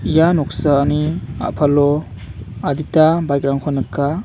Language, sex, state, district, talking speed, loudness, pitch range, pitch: Garo, male, Meghalaya, West Garo Hills, 100 wpm, -17 LUFS, 140-155 Hz, 145 Hz